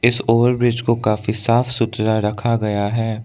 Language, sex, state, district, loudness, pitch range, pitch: Hindi, male, Arunachal Pradesh, Lower Dibang Valley, -18 LUFS, 105-120 Hz, 115 Hz